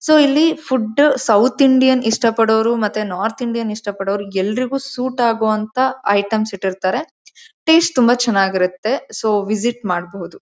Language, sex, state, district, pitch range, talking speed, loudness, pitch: Kannada, female, Karnataka, Mysore, 210-260 Hz, 130 wpm, -17 LUFS, 230 Hz